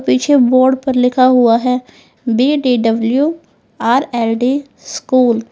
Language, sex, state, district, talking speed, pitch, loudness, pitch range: Hindi, female, Uttar Pradesh, Lalitpur, 100 wpm, 250 Hz, -13 LUFS, 235-260 Hz